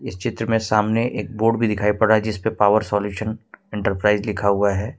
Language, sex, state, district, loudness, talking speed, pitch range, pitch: Hindi, male, Jharkhand, Ranchi, -20 LUFS, 230 wpm, 105-110 Hz, 110 Hz